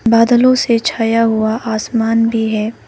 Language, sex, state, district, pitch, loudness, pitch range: Hindi, female, Arunachal Pradesh, Lower Dibang Valley, 230 Hz, -14 LUFS, 225-235 Hz